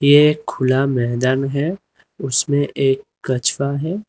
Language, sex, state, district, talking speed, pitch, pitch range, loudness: Hindi, male, Uttar Pradesh, Lalitpur, 115 wpm, 140 Hz, 130-150 Hz, -18 LUFS